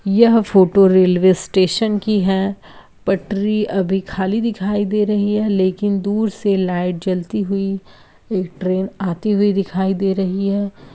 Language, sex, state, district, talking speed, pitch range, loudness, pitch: Hindi, female, Uttar Pradesh, Etah, 150 wpm, 185-205 Hz, -17 LUFS, 195 Hz